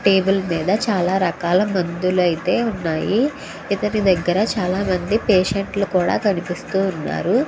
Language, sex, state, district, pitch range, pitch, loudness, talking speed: Telugu, female, Andhra Pradesh, Krishna, 180-205 Hz, 190 Hz, -19 LUFS, 130 wpm